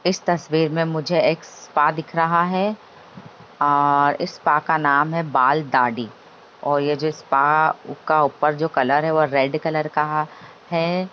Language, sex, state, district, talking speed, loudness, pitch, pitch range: Hindi, female, Bihar, Sitamarhi, 160 wpm, -20 LUFS, 155 Hz, 145-165 Hz